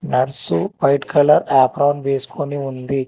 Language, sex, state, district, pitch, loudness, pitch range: Telugu, male, Telangana, Hyderabad, 140 Hz, -17 LUFS, 130-145 Hz